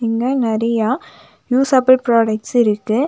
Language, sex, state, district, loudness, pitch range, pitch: Tamil, female, Tamil Nadu, Nilgiris, -16 LUFS, 225-260 Hz, 235 Hz